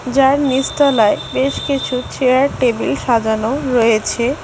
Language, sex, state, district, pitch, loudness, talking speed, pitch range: Bengali, female, West Bengal, Alipurduar, 255 Hz, -15 LUFS, 120 wpm, 235-270 Hz